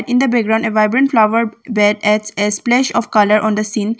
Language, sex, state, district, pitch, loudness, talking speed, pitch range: English, female, Arunachal Pradesh, Longding, 220 Hz, -14 LUFS, 225 wpm, 210-235 Hz